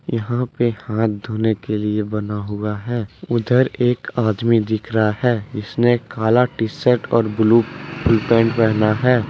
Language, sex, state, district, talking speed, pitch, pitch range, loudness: Hindi, male, Jharkhand, Deoghar, 155 wpm, 115 Hz, 105-120 Hz, -19 LUFS